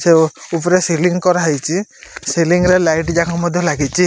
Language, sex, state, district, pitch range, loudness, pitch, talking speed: Odia, male, Odisha, Malkangiri, 165-180 Hz, -15 LUFS, 170 Hz, 160 wpm